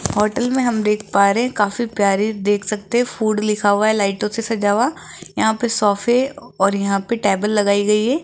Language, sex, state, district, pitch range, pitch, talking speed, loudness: Hindi, female, Rajasthan, Jaipur, 205-235 Hz, 210 Hz, 220 wpm, -18 LUFS